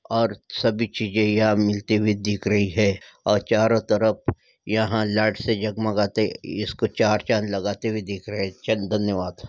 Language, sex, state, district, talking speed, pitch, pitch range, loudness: Hindi, male, Bihar, Madhepura, 165 wpm, 105 Hz, 105-110 Hz, -23 LUFS